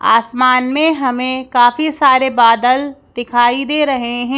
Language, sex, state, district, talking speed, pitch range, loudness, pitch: Hindi, female, Madhya Pradesh, Bhopal, 135 wpm, 240-275 Hz, -13 LUFS, 255 Hz